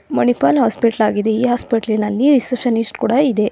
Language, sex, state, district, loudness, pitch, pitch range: Kannada, female, Karnataka, Bangalore, -16 LUFS, 230 Hz, 210-245 Hz